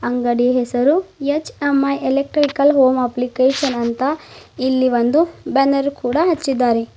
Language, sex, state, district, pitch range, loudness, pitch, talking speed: Kannada, female, Karnataka, Bidar, 250-285 Hz, -17 LUFS, 270 Hz, 105 wpm